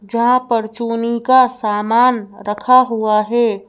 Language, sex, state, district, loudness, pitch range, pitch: Hindi, female, Madhya Pradesh, Bhopal, -15 LUFS, 215-245 Hz, 230 Hz